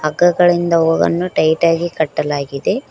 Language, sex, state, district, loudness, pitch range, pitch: Kannada, female, Karnataka, Koppal, -15 LUFS, 155-175 Hz, 165 Hz